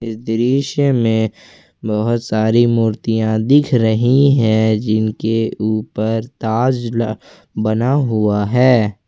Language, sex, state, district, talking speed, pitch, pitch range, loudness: Hindi, male, Jharkhand, Ranchi, 105 wpm, 115 Hz, 110-120 Hz, -16 LUFS